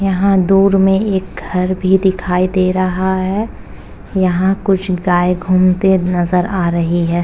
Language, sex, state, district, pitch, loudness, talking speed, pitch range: Hindi, female, Uttar Pradesh, Jalaun, 185 Hz, -14 LUFS, 150 wpm, 180-190 Hz